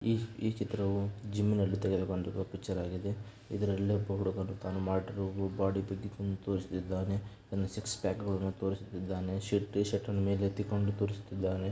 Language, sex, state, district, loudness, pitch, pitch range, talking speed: Kannada, male, Karnataka, Dakshina Kannada, -35 LUFS, 100 Hz, 95-100 Hz, 105 wpm